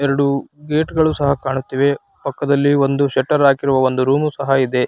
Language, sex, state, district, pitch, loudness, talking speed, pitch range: Kannada, male, Karnataka, Raichur, 140 Hz, -17 LUFS, 160 wpm, 135-145 Hz